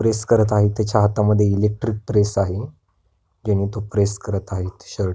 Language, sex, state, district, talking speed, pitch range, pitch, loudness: Marathi, male, Maharashtra, Pune, 175 wpm, 100-105 Hz, 105 Hz, -20 LUFS